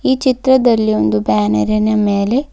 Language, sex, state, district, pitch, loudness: Kannada, female, Karnataka, Bidar, 215 Hz, -14 LUFS